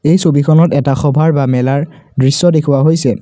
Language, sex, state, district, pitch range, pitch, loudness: Assamese, male, Assam, Kamrup Metropolitan, 140-160 Hz, 145 Hz, -12 LUFS